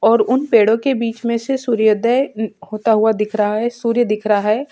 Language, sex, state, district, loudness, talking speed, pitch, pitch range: Hindi, female, Chhattisgarh, Sukma, -17 LUFS, 215 wpm, 225 Hz, 215-240 Hz